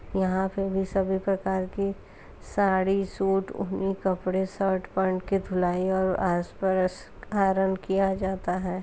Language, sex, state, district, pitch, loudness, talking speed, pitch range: Hindi, female, Bihar, Jahanabad, 190 Hz, -27 LUFS, 135 wpm, 185-195 Hz